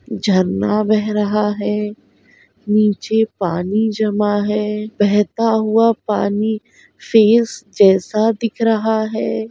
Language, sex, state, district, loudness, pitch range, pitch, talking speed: Hindi, female, Bihar, Saharsa, -17 LUFS, 205-220 Hz, 210 Hz, 100 wpm